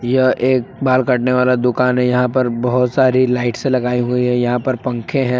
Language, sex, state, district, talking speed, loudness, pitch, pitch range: Hindi, male, Jharkhand, Palamu, 210 wpm, -16 LUFS, 125 Hz, 125-130 Hz